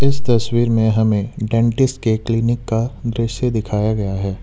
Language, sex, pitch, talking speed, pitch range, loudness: Hindi, male, 115 Hz, 160 wpm, 110-120 Hz, -18 LUFS